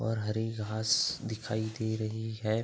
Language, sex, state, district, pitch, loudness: Hindi, male, Uttar Pradesh, Budaun, 110 Hz, -32 LUFS